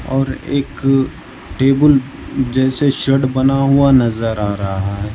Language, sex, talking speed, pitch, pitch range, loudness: Hindi, male, 130 wpm, 130 Hz, 115-135 Hz, -15 LUFS